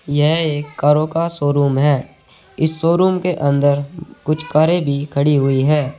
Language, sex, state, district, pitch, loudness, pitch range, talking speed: Hindi, male, Uttar Pradesh, Saharanpur, 150 Hz, -16 LUFS, 145-165 Hz, 160 wpm